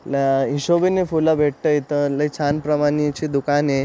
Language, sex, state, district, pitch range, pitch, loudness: Marathi, male, Maharashtra, Aurangabad, 145-155 Hz, 145 Hz, -19 LUFS